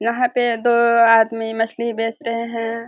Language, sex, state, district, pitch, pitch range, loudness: Hindi, female, Bihar, Kishanganj, 230 Hz, 225-235 Hz, -18 LUFS